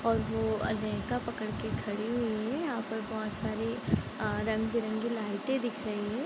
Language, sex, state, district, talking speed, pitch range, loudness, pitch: Hindi, female, Bihar, Sitamarhi, 180 wpm, 215-235 Hz, -33 LUFS, 220 Hz